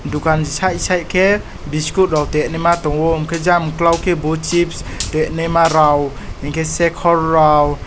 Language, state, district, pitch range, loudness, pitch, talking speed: Kokborok, Tripura, West Tripura, 155-170 Hz, -16 LUFS, 160 Hz, 145 wpm